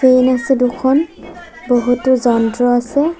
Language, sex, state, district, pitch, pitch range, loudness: Assamese, female, Assam, Sonitpur, 255 Hz, 245-280 Hz, -14 LUFS